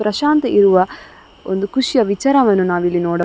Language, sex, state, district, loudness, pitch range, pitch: Kannada, female, Karnataka, Dakshina Kannada, -15 LUFS, 185-265 Hz, 200 Hz